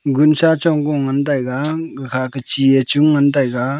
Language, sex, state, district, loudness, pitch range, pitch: Wancho, male, Arunachal Pradesh, Longding, -16 LUFS, 135-150 Hz, 140 Hz